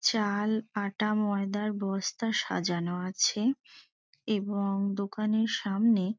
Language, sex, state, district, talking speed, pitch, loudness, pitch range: Bengali, female, West Bengal, Dakshin Dinajpur, 85 wpm, 205 Hz, -30 LUFS, 200-215 Hz